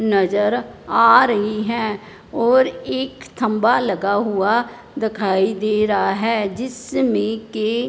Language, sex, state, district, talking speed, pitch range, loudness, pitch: Hindi, male, Punjab, Fazilka, 115 wpm, 205-235 Hz, -19 LUFS, 215 Hz